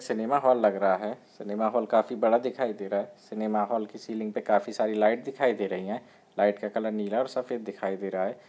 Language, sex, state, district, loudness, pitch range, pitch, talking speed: Hindi, male, Bihar, Samastipur, -28 LUFS, 100-120 Hz, 110 Hz, 245 wpm